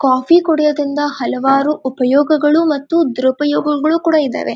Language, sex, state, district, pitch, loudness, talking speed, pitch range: Kannada, female, Karnataka, Dharwad, 295 Hz, -14 LUFS, 105 wpm, 270-310 Hz